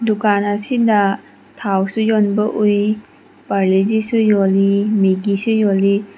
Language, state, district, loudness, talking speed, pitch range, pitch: Manipuri, Manipur, Imphal West, -16 LUFS, 105 wpm, 195-215 Hz, 205 Hz